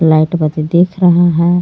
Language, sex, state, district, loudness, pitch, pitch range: Hindi, female, Jharkhand, Garhwa, -12 LUFS, 170 Hz, 155-175 Hz